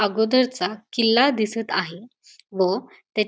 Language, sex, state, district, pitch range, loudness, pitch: Marathi, female, Maharashtra, Dhule, 195-240 Hz, -22 LUFS, 220 Hz